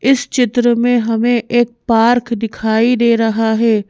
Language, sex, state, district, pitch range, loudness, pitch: Hindi, female, Madhya Pradesh, Bhopal, 225-240 Hz, -14 LUFS, 235 Hz